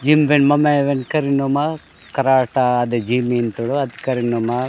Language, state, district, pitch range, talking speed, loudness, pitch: Gondi, Chhattisgarh, Sukma, 120-145 Hz, 155 wpm, -18 LUFS, 135 Hz